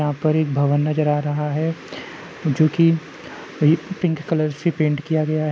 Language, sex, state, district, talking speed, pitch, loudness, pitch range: Hindi, male, Uttar Pradesh, Jalaun, 185 wpm, 155 Hz, -20 LUFS, 150-160 Hz